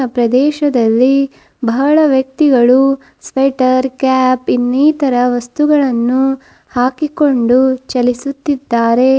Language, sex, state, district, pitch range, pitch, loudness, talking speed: Kannada, female, Karnataka, Bidar, 245-275 Hz, 260 Hz, -13 LUFS, 60 wpm